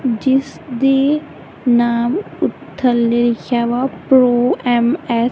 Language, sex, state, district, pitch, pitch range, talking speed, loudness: Punjabi, female, Punjab, Kapurthala, 245 Hz, 235-265 Hz, 125 wpm, -16 LUFS